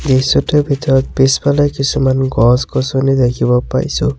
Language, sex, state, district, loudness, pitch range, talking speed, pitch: Assamese, male, Assam, Sonitpur, -13 LUFS, 130-140 Hz, 100 wpm, 135 Hz